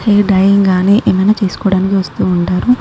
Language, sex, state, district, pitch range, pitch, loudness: Telugu, female, Andhra Pradesh, Guntur, 185-205 Hz, 195 Hz, -12 LUFS